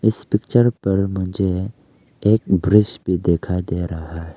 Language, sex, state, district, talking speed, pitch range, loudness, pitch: Hindi, male, Arunachal Pradesh, Lower Dibang Valley, 150 wpm, 90-105 Hz, -19 LUFS, 95 Hz